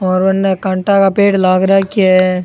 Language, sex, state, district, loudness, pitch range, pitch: Rajasthani, male, Rajasthan, Churu, -12 LUFS, 185-195 Hz, 190 Hz